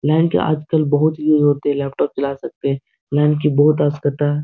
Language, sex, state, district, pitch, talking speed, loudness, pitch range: Hindi, male, Bihar, Supaul, 145 Hz, 215 wpm, -18 LUFS, 145-150 Hz